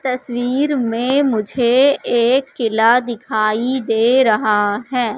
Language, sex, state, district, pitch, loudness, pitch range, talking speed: Hindi, female, Madhya Pradesh, Katni, 240 Hz, -16 LUFS, 225-255 Hz, 105 wpm